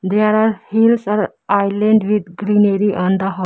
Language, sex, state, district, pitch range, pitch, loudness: English, female, Arunachal Pradesh, Lower Dibang Valley, 195-215 Hz, 205 Hz, -16 LUFS